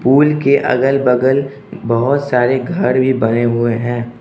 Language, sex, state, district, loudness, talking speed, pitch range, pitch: Hindi, male, Arunachal Pradesh, Lower Dibang Valley, -14 LUFS, 155 wpm, 120-140 Hz, 130 Hz